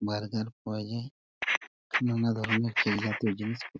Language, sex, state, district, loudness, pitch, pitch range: Bengali, male, West Bengal, Purulia, -30 LUFS, 110 Hz, 105-115 Hz